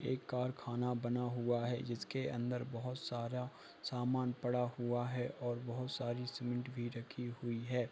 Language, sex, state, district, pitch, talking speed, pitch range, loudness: Hindi, male, Jharkhand, Jamtara, 125 Hz, 160 wpm, 120-125 Hz, -40 LUFS